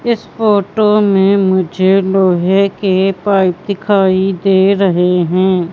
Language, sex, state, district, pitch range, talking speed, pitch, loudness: Hindi, female, Madhya Pradesh, Katni, 185-200 Hz, 115 wpm, 195 Hz, -12 LUFS